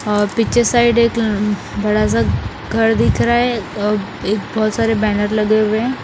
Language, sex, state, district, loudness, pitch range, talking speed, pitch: Hindi, female, Bihar, Patna, -16 LUFS, 200-225 Hz, 190 wpm, 210 Hz